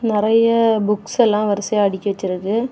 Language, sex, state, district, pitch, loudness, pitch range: Tamil, female, Tamil Nadu, Kanyakumari, 210 Hz, -17 LUFS, 205-225 Hz